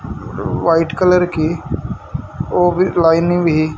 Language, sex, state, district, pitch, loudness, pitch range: Hindi, male, Haryana, Charkhi Dadri, 165 Hz, -16 LUFS, 155-175 Hz